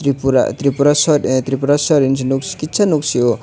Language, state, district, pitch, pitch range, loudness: Kokborok, Tripura, West Tripura, 140 Hz, 135-150 Hz, -15 LUFS